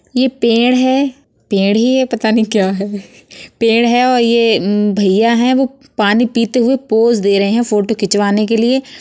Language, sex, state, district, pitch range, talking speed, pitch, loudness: Bundeli, female, Uttar Pradesh, Budaun, 205-250 Hz, 180 wpm, 230 Hz, -13 LUFS